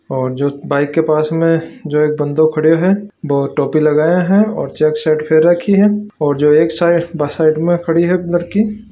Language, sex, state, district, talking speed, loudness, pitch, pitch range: Marwari, male, Rajasthan, Nagaur, 195 wpm, -14 LUFS, 160 Hz, 150-175 Hz